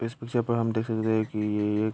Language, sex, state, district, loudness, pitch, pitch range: Hindi, male, Uttar Pradesh, Varanasi, -27 LUFS, 110 Hz, 105-115 Hz